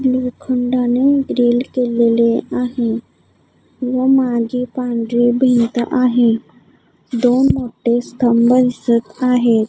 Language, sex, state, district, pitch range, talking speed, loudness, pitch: Marathi, female, Maharashtra, Gondia, 235-255 Hz, 85 wpm, -16 LUFS, 245 Hz